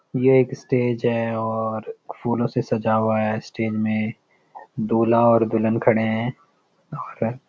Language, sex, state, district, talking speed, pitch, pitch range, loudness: Hindi, male, Uttarakhand, Uttarkashi, 135 wpm, 115 Hz, 110-130 Hz, -21 LUFS